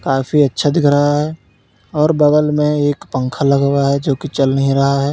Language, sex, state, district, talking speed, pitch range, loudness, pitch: Hindi, male, Uttar Pradesh, Lalitpur, 210 wpm, 135-150 Hz, -15 LUFS, 140 Hz